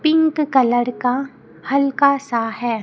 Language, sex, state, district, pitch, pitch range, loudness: Hindi, female, Chhattisgarh, Raipur, 265 Hz, 240-280 Hz, -18 LUFS